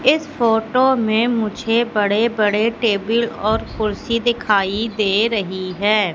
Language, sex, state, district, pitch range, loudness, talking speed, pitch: Hindi, female, Madhya Pradesh, Katni, 210-235 Hz, -18 LUFS, 125 wpm, 220 Hz